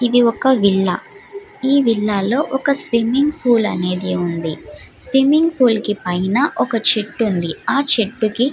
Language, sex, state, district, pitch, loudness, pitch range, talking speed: Telugu, female, Andhra Pradesh, Guntur, 230 Hz, -17 LUFS, 190-270 Hz, 150 wpm